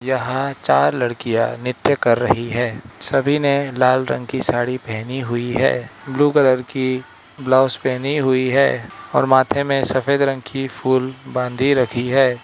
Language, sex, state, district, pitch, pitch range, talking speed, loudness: Hindi, male, Arunachal Pradesh, Lower Dibang Valley, 130 Hz, 125-135 Hz, 160 wpm, -18 LUFS